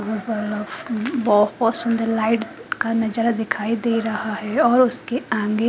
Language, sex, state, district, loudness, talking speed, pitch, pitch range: Hindi, female, Haryana, Charkhi Dadri, -20 LUFS, 125 wpm, 225 Hz, 215-235 Hz